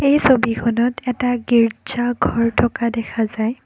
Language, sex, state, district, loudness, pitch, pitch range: Assamese, female, Assam, Kamrup Metropolitan, -18 LUFS, 235 Hz, 230-250 Hz